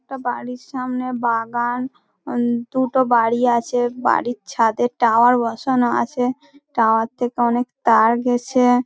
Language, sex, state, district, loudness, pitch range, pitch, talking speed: Bengali, female, West Bengal, Dakshin Dinajpur, -19 LUFS, 235-255 Hz, 245 Hz, 120 wpm